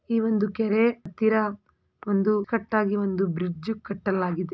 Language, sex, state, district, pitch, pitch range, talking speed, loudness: Kannada, female, Karnataka, Belgaum, 210 Hz, 195-220 Hz, 105 wpm, -25 LUFS